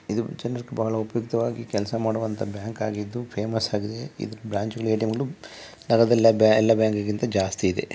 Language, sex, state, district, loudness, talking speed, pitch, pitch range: Kannada, male, Karnataka, Chamarajanagar, -24 LUFS, 100 wpm, 110 Hz, 105-115 Hz